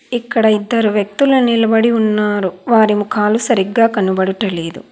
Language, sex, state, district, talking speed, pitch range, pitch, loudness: Telugu, female, Telangana, Hyderabad, 110 wpm, 205-230 Hz, 215 Hz, -14 LUFS